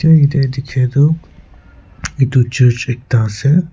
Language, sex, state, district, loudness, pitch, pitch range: Nagamese, male, Nagaland, Kohima, -14 LUFS, 130 Hz, 110-140 Hz